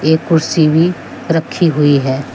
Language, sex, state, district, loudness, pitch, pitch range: Hindi, female, Uttar Pradesh, Shamli, -13 LUFS, 155 Hz, 140-165 Hz